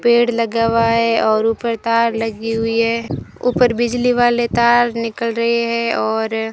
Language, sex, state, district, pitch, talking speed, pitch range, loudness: Hindi, female, Rajasthan, Bikaner, 230 Hz, 175 wpm, 225-235 Hz, -16 LUFS